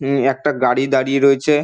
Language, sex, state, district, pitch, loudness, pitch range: Bengali, male, West Bengal, Dakshin Dinajpur, 135 Hz, -16 LUFS, 130-140 Hz